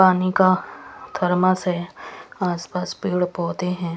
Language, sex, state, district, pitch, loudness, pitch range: Hindi, female, Punjab, Pathankot, 180 Hz, -22 LUFS, 180-185 Hz